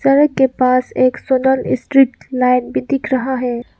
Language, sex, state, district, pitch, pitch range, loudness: Hindi, female, Arunachal Pradesh, Lower Dibang Valley, 260 Hz, 255-270 Hz, -15 LUFS